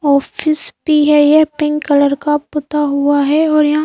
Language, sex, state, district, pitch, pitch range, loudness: Hindi, female, Madhya Pradesh, Bhopal, 295 Hz, 290-305 Hz, -13 LUFS